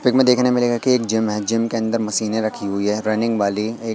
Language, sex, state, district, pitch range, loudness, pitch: Hindi, male, Madhya Pradesh, Katni, 110-120 Hz, -19 LUFS, 110 Hz